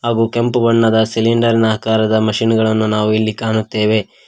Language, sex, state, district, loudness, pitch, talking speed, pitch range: Kannada, male, Karnataka, Koppal, -15 LUFS, 110 Hz, 155 wpm, 110-115 Hz